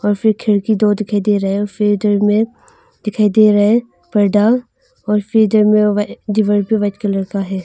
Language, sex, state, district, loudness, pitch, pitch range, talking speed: Hindi, female, Arunachal Pradesh, Longding, -15 LUFS, 210 Hz, 205-215 Hz, 210 wpm